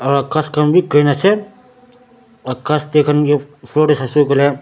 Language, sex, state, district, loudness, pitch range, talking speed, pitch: Nagamese, male, Nagaland, Dimapur, -15 LUFS, 145-200 Hz, 155 wpm, 150 Hz